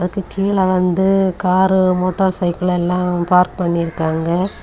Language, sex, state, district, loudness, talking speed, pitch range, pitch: Tamil, female, Tamil Nadu, Kanyakumari, -16 LUFS, 105 wpm, 175-190 Hz, 180 Hz